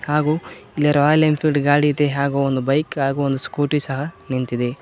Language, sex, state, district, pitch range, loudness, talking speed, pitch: Kannada, male, Karnataka, Koppal, 135-150 Hz, -19 LUFS, 175 wpm, 145 Hz